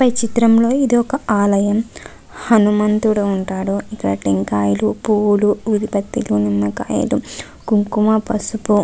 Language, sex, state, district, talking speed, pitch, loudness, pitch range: Telugu, female, Andhra Pradesh, Visakhapatnam, 90 wpm, 210 Hz, -17 LUFS, 195-220 Hz